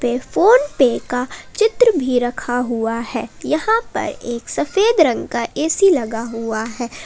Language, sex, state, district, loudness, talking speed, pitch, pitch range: Hindi, female, Jharkhand, Palamu, -18 LUFS, 155 wpm, 250 Hz, 235-385 Hz